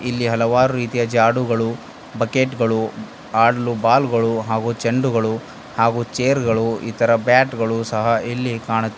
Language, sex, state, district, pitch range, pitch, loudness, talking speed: Kannada, male, Karnataka, Bidar, 115-120 Hz, 115 Hz, -19 LUFS, 135 wpm